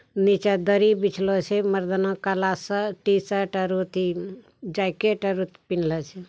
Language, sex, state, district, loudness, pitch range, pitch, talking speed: Angika, male, Bihar, Bhagalpur, -24 LUFS, 185-200 Hz, 195 Hz, 145 wpm